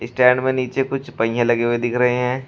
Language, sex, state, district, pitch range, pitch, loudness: Hindi, male, Uttar Pradesh, Shamli, 120-130 Hz, 125 Hz, -19 LUFS